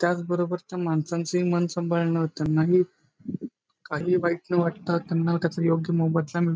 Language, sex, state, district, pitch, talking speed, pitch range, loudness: Marathi, male, Maharashtra, Pune, 170 Hz, 155 wpm, 165-175 Hz, -25 LUFS